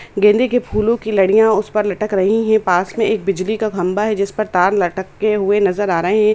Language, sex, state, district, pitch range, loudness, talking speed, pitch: Hindi, female, Bihar, Samastipur, 195-215 Hz, -16 LUFS, 245 wpm, 210 Hz